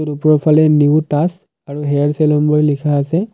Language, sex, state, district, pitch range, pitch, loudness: Assamese, male, Assam, Kamrup Metropolitan, 145-155 Hz, 150 Hz, -14 LUFS